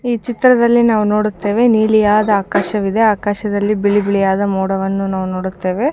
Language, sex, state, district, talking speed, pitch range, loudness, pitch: Kannada, female, Karnataka, Bijapur, 120 wpm, 195-220 Hz, -15 LUFS, 205 Hz